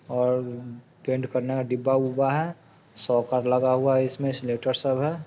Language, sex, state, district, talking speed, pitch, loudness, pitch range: Hindi, male, Bihar, Sitamarhi, 150 wpm, 130 Hz, -25 LUFS, 125-135 Hz